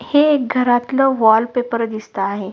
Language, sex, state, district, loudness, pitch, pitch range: Marathi, female, Maharashtra, Solapur, -16 LUFS, 245 Hz, 220-260 Hz